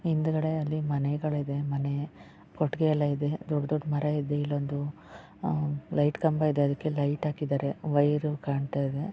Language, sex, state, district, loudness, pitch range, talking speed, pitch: Kannada, female, Karnataka, Chamarajanagar, -29 LUFS, 145-155 Hz, 125 wpm, 145 Hz